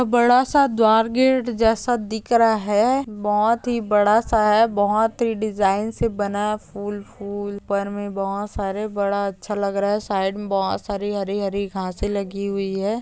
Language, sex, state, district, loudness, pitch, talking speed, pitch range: Hindi, female, Andhra Pradesh, Chittoor, -21 LUFS, 205 Hz, 175 wpm, 200-225 Hz